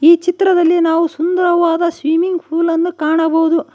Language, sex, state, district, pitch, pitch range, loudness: Kannada, female, Karnataka, Koppal, 335 Hz, 325-345 Hz, -14 LUFS